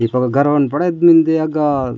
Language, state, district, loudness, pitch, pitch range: Gondi, Chhattisgarh, Sukma, -14 LUFS, 145 Hz, 130-160 Hz